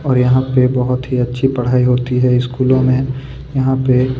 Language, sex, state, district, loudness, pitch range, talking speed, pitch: Hindi, male, Chhattisgarh, Kabirdham, -15 LUFS, 125-130 Hz, 155 wpm, 130 Hz